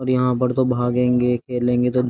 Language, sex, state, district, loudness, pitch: Hindi, male, Uttar Pradesh, Jyotiba Phule Nagar, -19 LUFS, 125 Hz